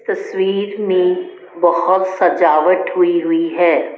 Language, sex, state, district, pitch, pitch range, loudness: Hindi, female, Rajasthan, Jaipur, 180 Hz, 175-190 Hz, -15 LUFS